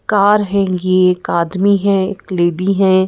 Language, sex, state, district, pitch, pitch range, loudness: Hindi, female, Madhya Pradesh, Bhopal, 190 Hz, 185-200 Hz, -14 LUFS